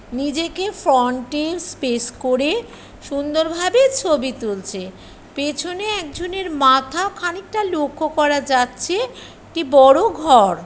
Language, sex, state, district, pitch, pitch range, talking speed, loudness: Bengali, female, West Bengal, Kolkata, 305 Hz, 265-365 Hz, 100 wpm, -18 LUFS